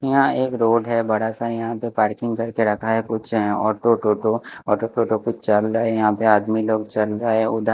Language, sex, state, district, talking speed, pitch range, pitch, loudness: Hindi, male, Maharashtra, Mumbai Suburban, 225 wpm, 110-115 Hz, 110 Hz, -20 LUFS